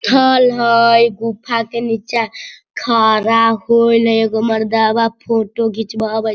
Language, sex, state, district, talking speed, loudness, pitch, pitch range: Hindi, female, Bihar, Sitamarhi, 125 wpm, -14 LUFS, 230 Hz, 220-235 Hz